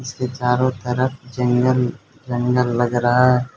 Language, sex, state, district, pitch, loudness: Hindi, male, Arunachal Pradesh, Lower Dibang Valley, 125 Hz, -19 LUFS